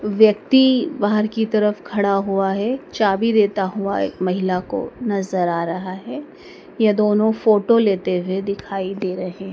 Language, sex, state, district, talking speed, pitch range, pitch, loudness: Hindi, female, Madhya Pradesh, Dhar, 155 wpm, 190-225 Hz, 205 Hz, -19 LUFS